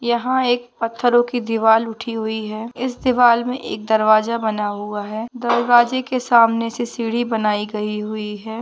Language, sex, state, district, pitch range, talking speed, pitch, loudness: Hindi, female, Maharashtra, Pune, 215-240 Hz, 175 wpm, 230 Hz, -19 LUFS